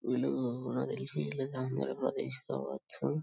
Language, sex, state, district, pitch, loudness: Telugu, male, Telangana, Karimnagar, 120 Hz, -36 LUFS